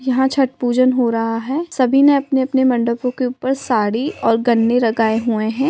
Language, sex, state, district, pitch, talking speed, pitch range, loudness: Hindi, female, Uttar Pradesh, Budaun, 250 Hz, 200 wpm, 230-265 Hz, -17 LUFS